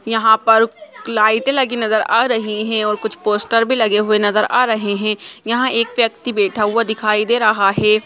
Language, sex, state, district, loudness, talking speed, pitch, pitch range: Hindi, female, Bihar, Gaya, -15 LUFS, 200 wpm, 220 Hz, 215-230 Hz